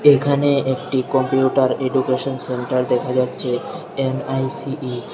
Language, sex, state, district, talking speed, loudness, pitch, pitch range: Bengali, male, Tripura, Unakoti, 105 wpm, -20 LUFS, 130 Hz, 130-135 Hz